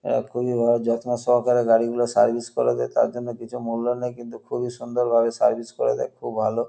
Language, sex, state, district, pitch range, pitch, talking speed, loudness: Bengali, male, West Bengal, North 24 Parganas, 115-120 Hz, 120 Hz, 205 wpm, -23 LUFS